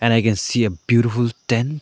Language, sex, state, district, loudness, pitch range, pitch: English, male, Arunachal Pradesh, Lower Dibang Valley, -19 LUFS, 115-120 Hz, 115 Hz